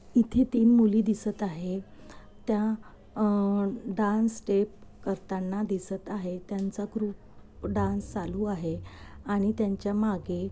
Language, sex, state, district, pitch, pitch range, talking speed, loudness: Marathi, female, Maharashtra, Nagpur, 205 Hz, 190-215 Hz, 115 wpm, -29 LUFS